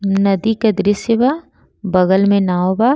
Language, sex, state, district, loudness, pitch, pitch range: Bhojpuri, female, Uttar Pradesh, Gorakhpur, -15 LUFS, 200 Hz, 195-225 Hz